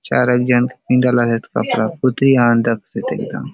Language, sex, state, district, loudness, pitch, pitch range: Halbi, male, Chhattisgarh, Bastar, -16 LUFS, 125 Hz, 120-125 Hz